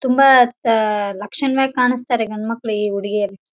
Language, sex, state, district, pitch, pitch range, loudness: Kannada, female, Karnataka, Raichur, 230 Hz, 210-255 Hz, -17 LUFS